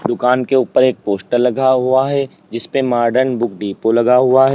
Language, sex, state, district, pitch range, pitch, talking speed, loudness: Hindi, male, Uttar Pradesh, Lalitpur, 120-130 Hz, 125 Hz, 200 wpm, -15 LUFS